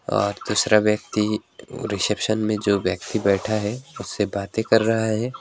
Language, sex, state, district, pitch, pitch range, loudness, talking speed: Hindi, male, West Bengal, Alipurduar, 105 Hz, 100-110 Hz, -22 LUFS, 180 wpm